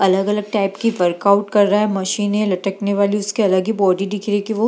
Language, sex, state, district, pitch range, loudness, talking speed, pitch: Hindi, female, Bihar, Gaya, 195-210 Hz, -18 LUFS, 255 wpm, 200 Hz